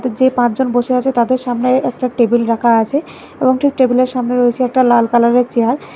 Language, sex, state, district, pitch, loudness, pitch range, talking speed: Bengali, female, Karnataka, Bangalore, 250 Hz, -14 LUFS, 240-255 Hz, 190 wpm